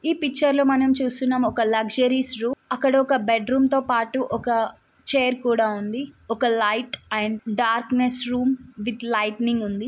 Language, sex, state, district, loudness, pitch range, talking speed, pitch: Telugu, female, Telangana, Nalgonda, -22 LUFS, 225-265 Hz, 165 wpm, 245 Hz